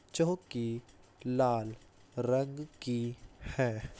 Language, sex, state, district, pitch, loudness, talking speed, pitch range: Hindi, male, Bihar, Saharsa, 120 Hz, -35 LUFS, 75 wpm, 110-130 Hz